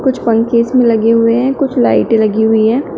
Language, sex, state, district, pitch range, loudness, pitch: Hindi, female, Uttar Pradesh, Shamli, 225-255 Hz, -11 LUFS, 230 Hz